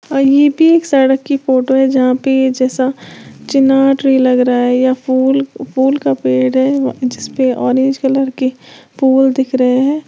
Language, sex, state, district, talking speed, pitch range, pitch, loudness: Hindi, female, Uttar Pradesh, Lalitpur, 180 wpm, 255-270 Hz, 265 Hz, -13 LUFS